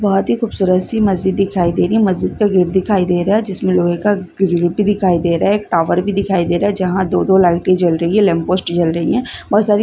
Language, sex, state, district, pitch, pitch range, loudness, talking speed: Hindi, female, Bihar, Saran, 190 Hz, 175-205 Hz, -15 LUFS, 275 wpm